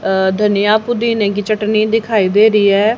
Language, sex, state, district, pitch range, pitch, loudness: Hindi, female, Haryana, Charkhi Dadri, 205-220 Hz, 210 Hz, -13 LUFS